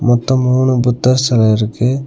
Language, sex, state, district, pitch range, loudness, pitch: Tamil, male, Tamil Nadu, Nilgiris, 120-130 Hz, -13 LUFS, 125 Hz